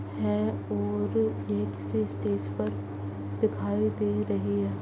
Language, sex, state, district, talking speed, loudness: Hindi, female, Bihar, Purnia, 125 wpm, -30 LUFS